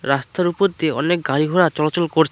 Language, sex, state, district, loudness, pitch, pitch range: Bengali, male, West Bengal, Cooch Behar, -19 LUFS, 160 Hz, 150-175 Hz